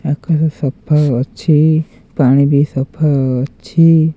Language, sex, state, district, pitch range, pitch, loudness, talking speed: Odia, male, Odisha, Khordha, 135-160 Hz, 145 Hz, -14 LUFS, 100 wpm